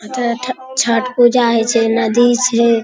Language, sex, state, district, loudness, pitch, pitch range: Maithili, female, Bihar, Araria, -14 LUFS, 240 Hz, 230-250 Hz